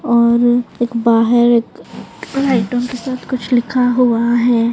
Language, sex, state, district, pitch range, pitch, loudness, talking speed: Hindi, female, Karnataka, Dakshina Kannada, 235-250 Hz, 240 Hz, -15 LUFS, 100 wpm